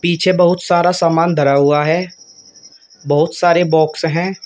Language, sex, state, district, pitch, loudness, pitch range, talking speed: Hindi, male, Uttar Pradesh, Shamli, 170 Hz, -14 LUFS, 155-175 Hz, 150 wpm